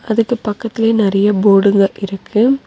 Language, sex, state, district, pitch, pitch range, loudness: Tamil, female, Tamil Nadu, Nilgiris, 210 Hz, 200-225 Hz, -14 LUFS